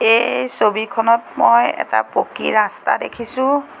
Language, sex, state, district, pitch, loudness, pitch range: Assamese, female, Assam, Sonitpur, 230 Hz, -17 LUFS, 220-240 Hz